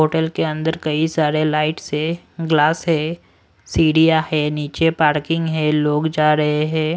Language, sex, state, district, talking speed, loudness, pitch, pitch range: Hindi, male, Odisha, Sambalpur, 155 wpm, -18 LUFS, 155 Hz, 150-160 Hz